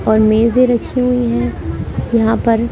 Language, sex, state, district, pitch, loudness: Hindi, female, Delhi, New Delhi, 225 Hz, -15 LUFS